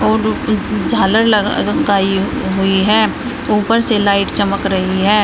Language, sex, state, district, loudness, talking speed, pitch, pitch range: Hindi, female, Uttar Pradesh, Shamli, -14 LUFS, 160 wpm, 200 Hz, 190-210 Hz